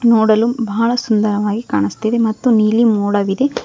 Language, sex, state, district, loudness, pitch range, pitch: Kannada, female, Karnataka, Koppal, -15 LUFS, 210-235 Hz, 220 Hz